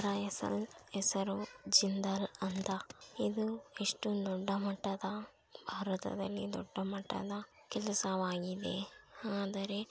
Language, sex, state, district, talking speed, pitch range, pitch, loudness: Kannada, female, Karnataka, Bellary, 75 wpm, 195-205 Hz, 200 Hz, -37 LUFS